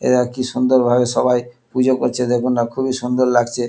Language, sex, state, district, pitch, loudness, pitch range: Bengali, male, West Bengal, Kolkata, 125 Hz, -17 LUFS, 120-125 Hz